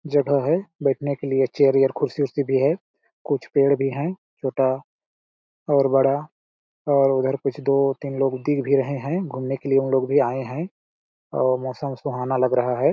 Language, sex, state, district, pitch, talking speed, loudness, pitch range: Hindi, male, Chhattisgarh, Balrampur, 135 Hz, 200 wpm, -22 LUFS, 130-140 Hz